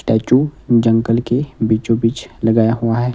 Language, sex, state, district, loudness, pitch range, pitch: Hindi, male, Himachal Pradesh, Shimla, -16 LUFS, 115-125 Hz, 115 Hz